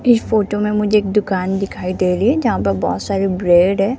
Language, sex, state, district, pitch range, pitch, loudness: Hindi, female, Rajasthan, Jaipur, 185-210 Hz, 195 Hz, -16 LUFS